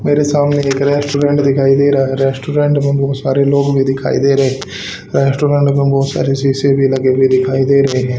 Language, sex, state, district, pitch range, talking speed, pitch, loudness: Hindi, male, Haryana, Rohtak, 135-140 Hz, 220 wpm, 140 Hz, -13 LUFS